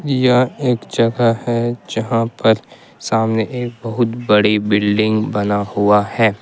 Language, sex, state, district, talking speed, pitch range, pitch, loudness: Hindi, male, Jharkhand, Ranchi, 130 wpm, 105-120 Hz, 115 Hz, -17 LUFS